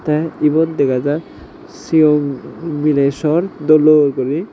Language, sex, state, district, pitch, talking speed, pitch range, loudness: Chakma, male, Tripura, Dhalai, 150 Hz, 130 wpm, 145-160 Hz, -15 LUFS